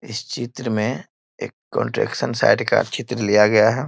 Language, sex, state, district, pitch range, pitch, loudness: Hindi, male, Bihar, East Champaran, 110-125 Hz, 115 Hz, -20 LUFS